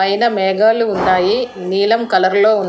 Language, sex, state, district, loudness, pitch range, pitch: Telugu, female, Telangana, Hyderabad, -14 LUFS, 190-225 Hz, 200 Hz